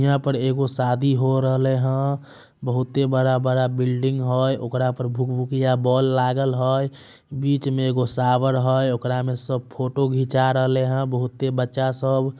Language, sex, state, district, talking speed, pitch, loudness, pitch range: Magahi, male, Bihar, Samastipur, 160 wpm, 130 Hz, -21 LUFS, 125-135 Hz